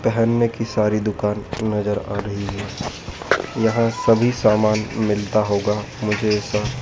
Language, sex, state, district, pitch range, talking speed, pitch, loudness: Hindi, male, Madhya Pradesh, Dhar, 105-115 Hz, 130 wpm, 105 Hz, -20 LUFS